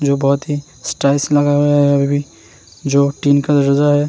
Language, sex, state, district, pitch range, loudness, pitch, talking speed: Hindi, male, Uttarakhand, Tehri Garhwal, 140-145 Hz, -15 LUFS, 145 Hz, 190 wpm